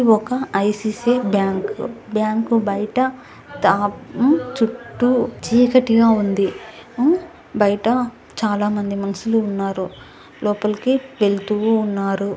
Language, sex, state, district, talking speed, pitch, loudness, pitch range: Telugu, female, Andhra Pradesh, Anantapur, 95 wpm, 220 Hz, -19 LUFS, 205-245 Hz